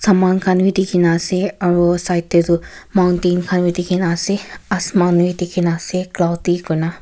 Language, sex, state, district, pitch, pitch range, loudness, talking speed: Nagamese, female, Nagaland, Kohima, 180 Hz, 175-185 Hz, -17 LUFS, 195 wpm